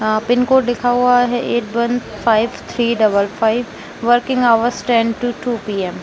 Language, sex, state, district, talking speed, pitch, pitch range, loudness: Hindi, female, Jharkhand, Jamtara, 190 wpm, 235 Hz, 220-245 Hz, -16 LUFS